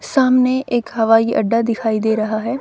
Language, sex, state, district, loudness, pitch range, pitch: Hindi, female, Haryana, Rohtak, -16 LUFS, 220-250 Hz, 230 Hz